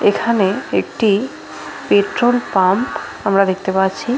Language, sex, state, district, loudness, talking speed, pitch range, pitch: Bengali, female, West Bengal, Paschim Medinipur, -16 LUFS, 100 wpm, 190-235 Hz, 205 Hz